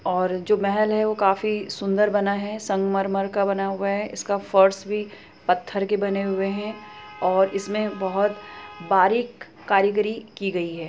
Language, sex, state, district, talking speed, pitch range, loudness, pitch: Hindi, female, Uttar Pradesh, Etah, 165 wpm, 195-210 Hz, -23 LUFS, 200 Hz